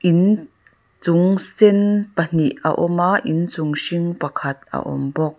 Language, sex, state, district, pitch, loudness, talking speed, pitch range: Mizo, female, Mizoram, Aizawl, 170 Hz, -19 LUFS, 155 wpm, 155-190 Hz